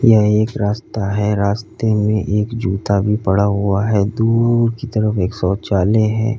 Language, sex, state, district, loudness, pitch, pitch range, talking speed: Hindi, male, Uttar Pradesh, Lalitpur, -17 LUFS, 105 Hz, 100-110 Hz, 170 wpm